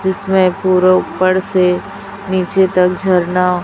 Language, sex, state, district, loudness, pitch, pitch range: Hindi, female, Chhattisgarh, Raipur, -14 LUFS, 185 Hz, 180-190 Hz